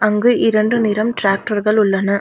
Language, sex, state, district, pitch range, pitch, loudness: Tamil, female, Tamil Nadu, Nilgiris, 200-220 Hz, 215 Hz, -16 LUFS